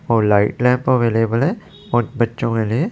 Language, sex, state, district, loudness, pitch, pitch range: Hindi, male, Chandigarh, Chandigarh, -18 LUFS, 120 Hz, 115-135 Hz